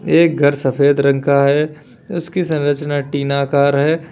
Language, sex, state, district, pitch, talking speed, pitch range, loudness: Hindi, male, Uttar Pradesh, Lalitpur, 145 Hz, 145 wpm, 140-155 Hz, -15 LUFS